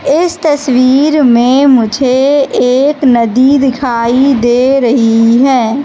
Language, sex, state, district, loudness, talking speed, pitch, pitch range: Hindi, female, Madhya Pradesh, Katni, -9 LUFS, 100 wpm, 260 Hz, 245-280 Hz